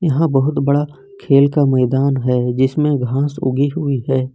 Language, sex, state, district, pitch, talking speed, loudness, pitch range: Hindi, male, Jharkhand, Ranchi, 140 Hz, 165 wpm, -16 LUFS, 130-145 Hz